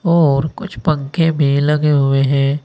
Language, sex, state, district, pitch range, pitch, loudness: Hindi, male, Uttar Pradesh, Saharanpur, 140-155 Hz, 145 Hz, -15 LUFS